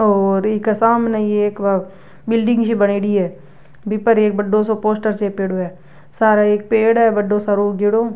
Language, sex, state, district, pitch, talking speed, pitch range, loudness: Rajasthani, female, Rajasthan, Nagaur, 210 Hz, 175 wpm, 200-220 Hz, -16 LUFS